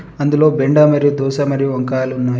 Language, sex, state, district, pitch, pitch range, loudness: Telugu, male, Telangana, Adilabad, 140 Hz, 130-145 Hz, -15 LUFS